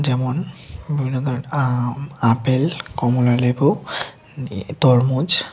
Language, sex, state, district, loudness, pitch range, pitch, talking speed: Bengali, male, Tripura, West Tripura, -19 LUFS, 125-145 Hz, 130 Hz, 75 wpm